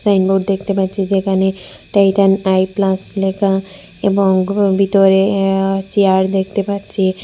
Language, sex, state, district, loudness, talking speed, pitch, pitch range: Bengali, female, Assam, Hailakandi, -15 LUFS, 115 wpm, 195 Hz, 190-195 Hz